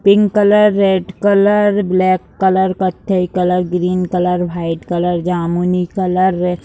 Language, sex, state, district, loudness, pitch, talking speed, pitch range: Hindi, female, Bihar, Sitamarhi, -15 LUFS, 185 Hz, 135 wpm, 180-195 Hz